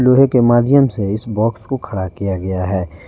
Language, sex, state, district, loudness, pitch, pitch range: Hindi, male, Jharkhand, Garhwa, -16 LUFS, 110 Hz, 95-125 Hz